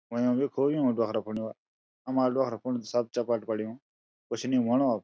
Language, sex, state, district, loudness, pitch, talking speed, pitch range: Garhwali, male, Uttarakhand, Uttarkashi, -29 LUFS, 120 Hz, 190 wpm, 115-130 Hz